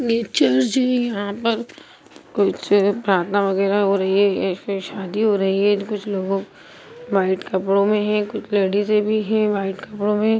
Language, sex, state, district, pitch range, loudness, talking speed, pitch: Hindi, female, Bihar, Begusarai, 195-215 Hz, -20 LUFS, 155 wpm, 205 Hz